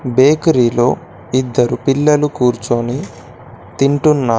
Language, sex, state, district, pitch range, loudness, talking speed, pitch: Telugu, male, Telangana, Komaram Bheem, 120-140 Hz, -14 LUFS, 70 wpm, 125 Hz